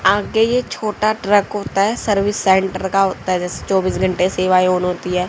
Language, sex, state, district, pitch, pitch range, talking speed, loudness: Hindi, female, Haryana, Charkhi Dadri, 190 Hz, 185-205 Hz, 205 wpm, -17 LUFS